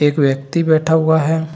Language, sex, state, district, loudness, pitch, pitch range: Hindi, male, Bihar, Saran, -15 LUFS, 160 Hz, 145-160 Hz